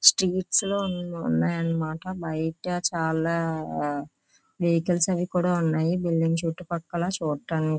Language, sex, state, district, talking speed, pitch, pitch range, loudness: Telugu, female, Andhra Pradesh, Visakhapatnam, 90 wpm, 170 Hz, 160-180 Hz, -26 LUFS